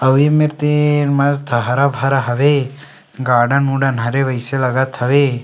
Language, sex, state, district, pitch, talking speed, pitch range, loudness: Chhattisgarhi, male, Chhattisgarh, Sarguja, 135 Hz, 145 wpm, 130-145 Hz, -15 LUFS